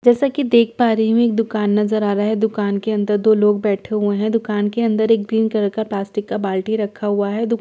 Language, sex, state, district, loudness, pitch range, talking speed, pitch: Hindi, female, Bihar, Katihar, -18 LUFS, 205-225 Hz, 275 wpm, 215 Hz